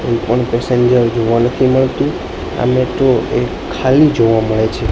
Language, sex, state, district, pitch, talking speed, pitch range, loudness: Gujarati, male, Gujarat, Gandhinagar, 120 Hz, 160 wpm, 115-130 Hz, -14 LUFS